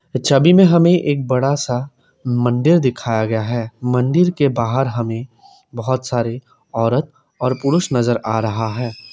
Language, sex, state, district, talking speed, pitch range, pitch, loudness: Hindi, male, Assam, Kamrup Metropolitan, 160 wpm, 115-145 Hz, 125 Hz, -17 LUFS